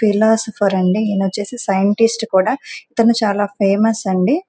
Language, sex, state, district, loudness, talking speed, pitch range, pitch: Telugu, female, Andhra Pradesh, Guntur, -16 LUFS, 120 wpm, 195-225 Hz, 210 Hz